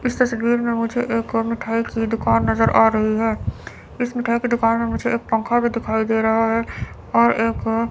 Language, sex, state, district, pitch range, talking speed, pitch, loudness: Hindi, female, Chandigarh, Chandigarh, 220-235 Hz, 205 wpm, 225 Hz, -20 LUFS